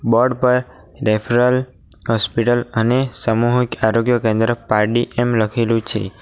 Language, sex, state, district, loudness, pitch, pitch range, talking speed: Gujarati, male, Gujarat, Valsad, -17 LUFS, 115 Hz, 110-125 Hz, 115 wpm